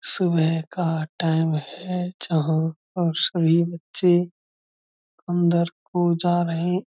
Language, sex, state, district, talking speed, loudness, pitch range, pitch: Hindi, male, Uttar Pradesh, Budaun, 115 wpm, -23 LUFS, 160-175 Hz, 170 Hz